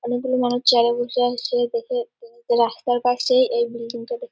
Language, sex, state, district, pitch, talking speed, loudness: Bengali, male, West Bengal, Dakshin Dinajpur, 245 Hz, 210 wpm, -21 LUFS